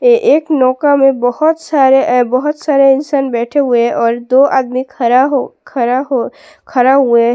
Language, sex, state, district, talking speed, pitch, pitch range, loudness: Hindi, female, Assam, Sonitpur, 190 wpm, 265 Hz, 250-285 Hz, -12 LUFS